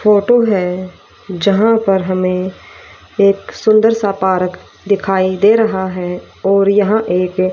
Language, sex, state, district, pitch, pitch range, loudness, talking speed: Hindi, female, Haryana, Rohtak, 195 Hz, 185-210 Hz, -14 LUFS, 125 wpm